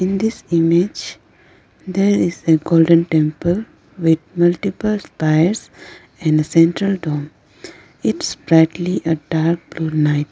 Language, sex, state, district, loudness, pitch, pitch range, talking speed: English, female, Arunachal Pradesh, Lower Dibang Valley, -17 LUFS, 165 Hz, 160-185 Hz, 120 wpm